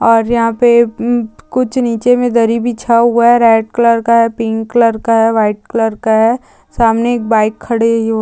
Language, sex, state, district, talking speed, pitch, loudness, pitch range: Hindi, female, Uttar Pradesh, Hamirpur, 210 wpm, 230 Hz, -12 LUFS, 225-235 Hz